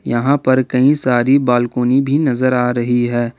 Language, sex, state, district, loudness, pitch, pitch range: Hindi, male, Jharkhand, Ranchi, -15 LUFS, 125 Hz, 120-135 Hz